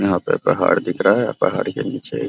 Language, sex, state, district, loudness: Hindi, male, Bihar, Araria, -19 LUFS